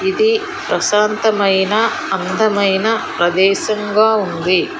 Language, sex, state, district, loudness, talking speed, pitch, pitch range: Telugu, female, Telangana, Hyderabad, -15 LUFS, 85 wpm, 215 Hz, 195-225 Hz